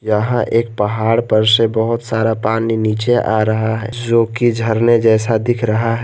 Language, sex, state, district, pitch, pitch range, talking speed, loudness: Hindi, male, Jharkhand, Garhwa, 115 Hz, 110-115 Hz, 180 wpm, -15 LUFS